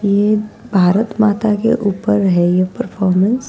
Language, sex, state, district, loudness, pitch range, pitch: Hindi, female, Delhi, New Delhi, -15 LUFS, 190-215 Hz, 205 Hz